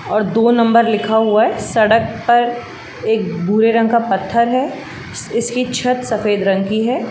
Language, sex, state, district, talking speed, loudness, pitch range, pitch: Hindi, female, Uttar Pradesh, Jalaun, 170 wpm, -15 LUFS, 215-240 Hz, 225 Hz